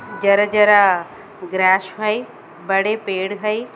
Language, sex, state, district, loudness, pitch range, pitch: Hindi, female, Maharashtra, Gondia, -17 LUFS, 190-215 Hz, 200 Hz